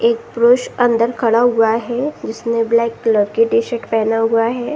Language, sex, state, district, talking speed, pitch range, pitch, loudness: Hindi, female, Uttar Pradesh, Jalaun, 175 wpm, 225-240 Hz, 230 Hz, -16 LUFS